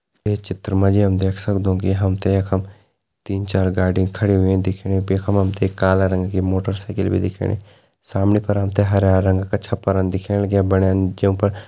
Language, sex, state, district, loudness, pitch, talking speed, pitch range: Hindi, male, Uttarakhand, Tehri Garhwal, -19 LUFS, 95 Hz, 175 wpm, 95-100 Hz